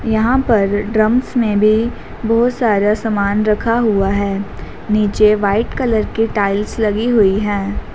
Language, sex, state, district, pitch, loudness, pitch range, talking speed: Hindi, female, Haryana, Jhajjar, 215 Hz, -15 LUFS, 205-225 Hz, 145 wpm